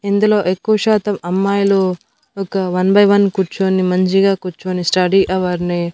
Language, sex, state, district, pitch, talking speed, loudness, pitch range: Telugu, female, Andhra Pradesh, Annamaya, 190 Hz, 140 wpm, -15 LUFS, 185-200 Hz